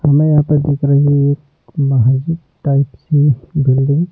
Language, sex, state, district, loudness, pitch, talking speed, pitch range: Hindi, male, Delhi, New Delhi, -14 LUFS, 145 Hz, 175 wpm, 140-150 Hz